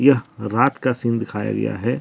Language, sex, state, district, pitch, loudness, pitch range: Hindi, male, Jharkhand, Deoghar, 115 Hz, -21 LUFS, 105-125 Hz